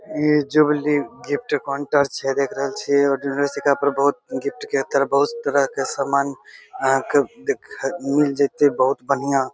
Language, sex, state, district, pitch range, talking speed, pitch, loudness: Maithili, male, Bihar, Begusarai, 140-145 Hz, 150 wpm, 140 Hz, -21 LUFS